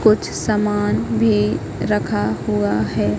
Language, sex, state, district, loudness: Hindi, female, Madhya Pradesh, Katni, -19 LUFS